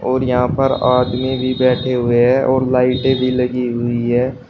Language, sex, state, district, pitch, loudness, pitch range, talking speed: Hindi, male, Uttar Pradesh, Shamli, 125 Hz, -16 LUFS, 125-130 Hz, 185 wpm